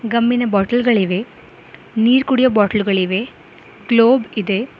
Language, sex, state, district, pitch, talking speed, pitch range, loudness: Kannada, female, Karnataka, Koppal, 230 Hz, 115 wpm, 205-245 Hz, -16 LUFS